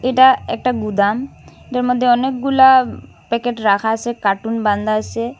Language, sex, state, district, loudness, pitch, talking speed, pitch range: Bengali, female, Assam, Hailakandi, -16 LUFS, 240 Hz, 135 wpm, 215-255 Hz